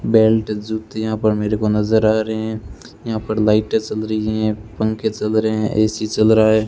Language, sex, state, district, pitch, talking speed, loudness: Hindi, male, Rajasthan, Bikaner, 110 Hz, 205 wpm, -18 LUFS